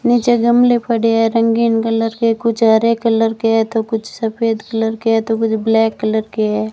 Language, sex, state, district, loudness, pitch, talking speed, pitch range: Hindi, female, Rajasthan, Bikaner, -15 LUFS, 225 Hz, 215 wpm, 225-230 Hz